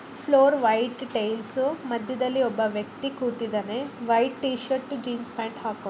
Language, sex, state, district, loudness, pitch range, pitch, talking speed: Kannada, female, Karnataka, Bellary, -26 LUFS, 225-265 Hz, 245 Hz, 130 wpm